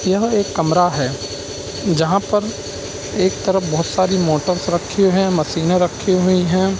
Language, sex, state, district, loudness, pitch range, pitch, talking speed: Hindi, male, Bihar, Darbhanga, -18 LUFS, 160-190 Hz, 180 Hz, 150 wpm